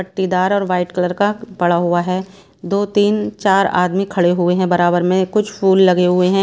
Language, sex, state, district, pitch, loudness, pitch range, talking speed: Hindi, female, Himachal Pradesh, Shimla, 185 Hz, -16 LUFS, 180-195 Hz, 205 wpm